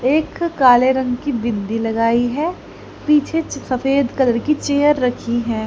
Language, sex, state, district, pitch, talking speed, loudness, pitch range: Hindi, female, Haryana, Charkhi Dadri, 255 Hz, 150 wpm, -17 LUFS, 235-295 Hz